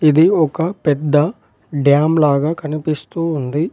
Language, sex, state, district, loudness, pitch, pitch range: Telugu, male, Telangana, Adilabad, -16 LUFS, 155 Hz, 145-160 Hz